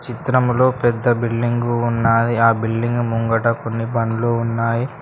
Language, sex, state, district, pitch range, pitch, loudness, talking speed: Telugu, male, Telangana, Mahabubabad, 115-120 Hz, 115 Hz, -18 LUFS, 130 wpm